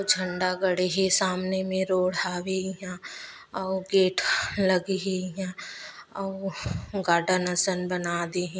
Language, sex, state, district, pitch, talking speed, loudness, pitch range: Chhattisgarhi, female, Chhattisgarh, Bastar, 185 Hz, 140 wpm, -26 LUFS, 180-190 Hz